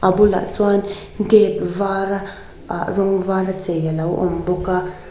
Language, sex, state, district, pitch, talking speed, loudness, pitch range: Mizo, female, Mizoram, Aizawl, 190 Hz, 155 wpm, -19 LUFS, 180-200 Hz